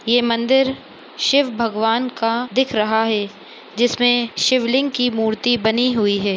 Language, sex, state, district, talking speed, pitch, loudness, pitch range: Hindi, female, Maharashtra, Nagpur, 140 wpm, 235 Hz, -18 LUFS, 220-250 Hz